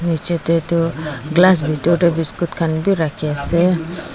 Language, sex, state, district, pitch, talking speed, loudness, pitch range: Nagamese, female, Nagaland, Dimapur, 165 Hz, 160 wpm, -17 LUFS, 160-175 Hz